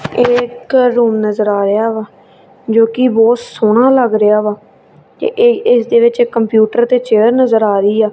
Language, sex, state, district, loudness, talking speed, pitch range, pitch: Punjabi, female, Punjab, Kapurthala, -12 LUFS, 190 wpm, 215-255 Hz, 230 Hz